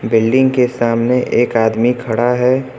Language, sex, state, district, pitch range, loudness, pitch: Hindi, male, Uttar Pradesh, Lucknow, 115-125 Hz, -14 LUFS, 120 Hz